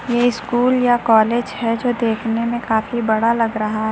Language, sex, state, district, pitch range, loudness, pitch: Hindi, female, Uttar Pradesh, Lucknow, 220-240 Hz, -18 LUFS, 230 Hz